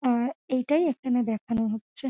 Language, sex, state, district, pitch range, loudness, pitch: Bengali, female, West Bengal, Dakshin Dinajpur, 230-270 Hz, -27 LUFS, 250 Hz